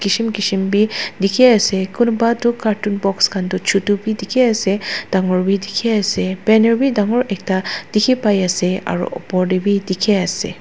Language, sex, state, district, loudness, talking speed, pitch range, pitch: Nagamese, female, Nagaland, Dimapur, -16 LUFS, 180 wpm, 190-220 Hz, 200 Hz